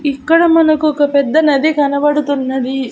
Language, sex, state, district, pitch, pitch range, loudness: Telugu, female, Andhra Pradesh, Annamaya, 290 Hz, 280-310 Hz, -13 LUFS